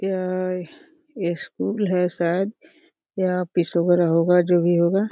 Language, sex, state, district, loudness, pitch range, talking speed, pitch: Hindi, female, Uttar Pradesh, Deoria, -22 LUFS, 175-205 Hz, 150 wpm, 185 Hz